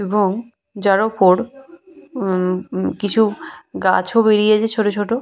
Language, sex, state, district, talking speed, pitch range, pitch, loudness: Bengali, female, West Bengal, Purulia, 115 wpm, 195-235 Hz, 215 Hz, -17 LUFS